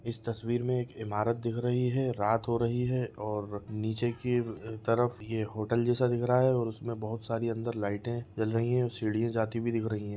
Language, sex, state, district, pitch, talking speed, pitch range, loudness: Hindi, male, Chhattisgarh, Raigarh, 115 Hz, 230 wpm, 110-120 Hz, -31 LUFS